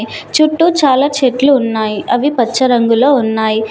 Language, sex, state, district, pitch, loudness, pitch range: Telugu, female, Telangana, Mahabubabad, 255 Hz, -12 LUFS, 225-285 Hz